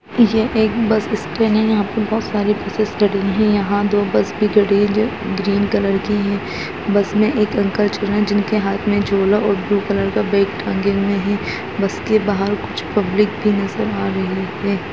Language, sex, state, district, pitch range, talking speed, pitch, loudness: Hindi, female, Uttarakhand, Tehri Garhwal, 200-215 Hz, 215 wpm, 205 Hz, -18 LUFS